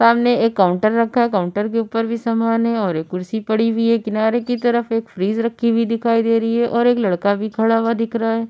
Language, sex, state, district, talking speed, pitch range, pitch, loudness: Hindi, female, Uttar Pradesh, Budaun, 260 wpm, 220-230 Hz, 230 Hz, -18 LUFS